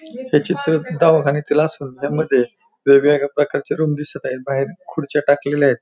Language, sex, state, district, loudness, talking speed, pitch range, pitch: Marathi, male, Maharashtra, Pune, -18 LUFS, 145 wpm, 140-160 Hz, 145 Hz